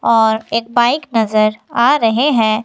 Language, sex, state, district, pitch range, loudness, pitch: Hindi, female, Himachal Pradesh, Shimla, 220-235 Hz, -14 LUFS, 225 Hz